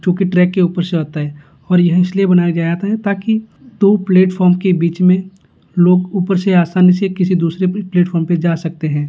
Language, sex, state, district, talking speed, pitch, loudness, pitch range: Hindi, male, Bihar, Gaya, 205 wpm, 180 Hz, -14 LUFS, 170-190 Hz